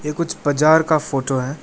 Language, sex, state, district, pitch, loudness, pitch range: Hindi, male, West Bengal, Alipurduar, 150 Hz, -18 LUFS, 135-155 Hz